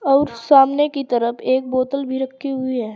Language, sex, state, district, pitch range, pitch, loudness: Hindi, female, Uttar Pradesh, Saharanpur, 255-275 Hz, 265 Hz, -18 LUFS